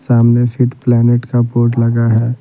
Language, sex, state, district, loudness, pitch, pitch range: Hindi, male, Bihar, Patna, -13 LUFS, 120 Hz, 115-120 Hz